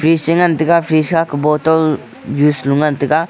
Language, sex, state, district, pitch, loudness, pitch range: Wancho, male, Arunachal Pradesh, Longding, 155 Hz, -14 LUFS, 150-165 Hz